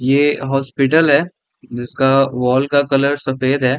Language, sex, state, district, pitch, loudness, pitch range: Hindi, male, Bihar, Sitamarhi, 135 Hz, -15 LUFS, 130-145 Hz